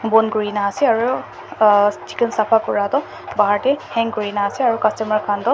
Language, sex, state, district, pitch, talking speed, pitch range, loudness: Nagamese, male, Nagaland, Dimapur, 215 Hz, 195 wpm, 205-230 Hz, -18 LUFS